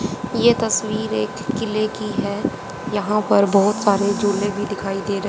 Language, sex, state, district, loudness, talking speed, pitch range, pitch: Hindi, female, Haryana, Jhajjar, -20 LUFS, 170 wpm, 200-215 Hz, 205 Hz